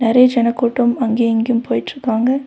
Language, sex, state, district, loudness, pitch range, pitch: Tamil, female, Tamil Nadu, Nilgiris, -16 LUFS, 235-250 Hz, 240 Hz